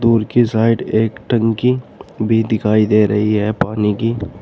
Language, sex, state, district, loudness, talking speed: Hindi, male, Uttar Pradesh, Shamli, -16 LUFS, 165 wpm